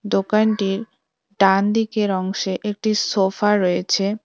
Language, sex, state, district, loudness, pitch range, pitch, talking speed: Bengali, female, West Bengal, Cooch Behar, -20 LUFS, 195-215 Hz, 205 Hz, 85 wpm